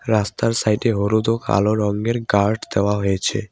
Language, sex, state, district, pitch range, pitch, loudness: Bengali, male, West Bengal, Cooch Behar, 100-115 Hz, 105 Hz, -19 LUFS